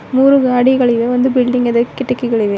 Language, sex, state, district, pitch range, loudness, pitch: Kannada, female, Karnataka, Bidar, 240-255 Hz, -13 LUFS, 250 Hz